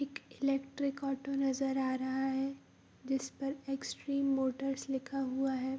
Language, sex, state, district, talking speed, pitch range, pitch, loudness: Hindi, female, Bihar, Vaishali, 145 wpm, 265-275 Hz, 270 Hz, -36 LUFS